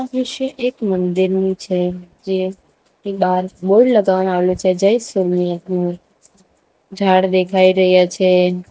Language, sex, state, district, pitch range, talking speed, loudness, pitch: Gujarati, female, Gujarat, Valsad, 180-195 Hz, 115 wpm, -16 LUFS, 185 Hz